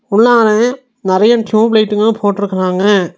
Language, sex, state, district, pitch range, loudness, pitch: Tamil, male, Tamil Nadu, Nilgiris, 200-230 Hz, -12 LUFS, 215 Hz